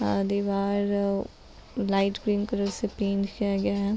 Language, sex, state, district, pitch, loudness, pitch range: Hindi, female, Bihar, Gopalganj, 200 Hz, -27 LUFS, 200-205 Hz